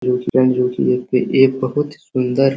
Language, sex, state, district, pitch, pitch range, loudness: Hindi, male, Uttar Pradesh, Hamirpur, 130 Hz, 125-135 Hz, -17 LUFS